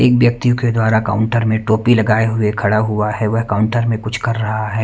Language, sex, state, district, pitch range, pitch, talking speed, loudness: Hindi, male, Himachal Pradesh, Shimla, 110-115 Hz, 110 Hz, 235 wpm, -16 LUFS